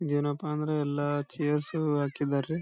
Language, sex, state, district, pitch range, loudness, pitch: Kannada, male, Karnataka, Bijapur, 145-155 Hz, -30 LUFS, 145 Hz